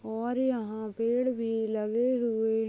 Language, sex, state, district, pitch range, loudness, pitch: Hindi, female, Goa, North and South Goa, 220-245 Hz, -29 LUFS, 225 Hz